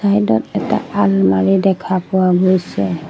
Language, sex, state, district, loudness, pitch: Assamese, female, Assam, Sonitpur, -15 LUFS, 180 Hz